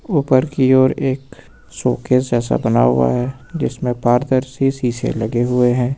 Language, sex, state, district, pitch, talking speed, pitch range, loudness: Hindi, male, Uttar Pradesh, Lucknow, 125 Hz, 150 wpm, 120-135 Hz, -17 LUFS